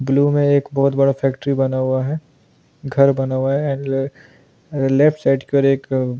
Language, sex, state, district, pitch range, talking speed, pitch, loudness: Hindi, male, Goa, North and South Goa, 135-140 Hz, 195 wpm, 135 Hz, -18 LUFS